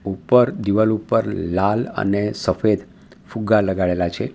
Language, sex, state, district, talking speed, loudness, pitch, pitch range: Gujarati, male, Gujarat, Valsad, 125 wpm, -19 LUFS, 105 Hz, 95-110 Hz